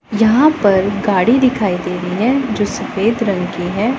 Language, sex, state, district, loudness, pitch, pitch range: Hindi, female, Punjab, Pathankot, -15 LUFS, 210 Hz, 190-240 Hz